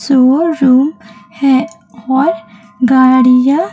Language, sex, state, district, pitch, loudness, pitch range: Hindi, female, Chhattisgarh, Raipur, 255 Hz, -11 LUFS, 220-270 Hz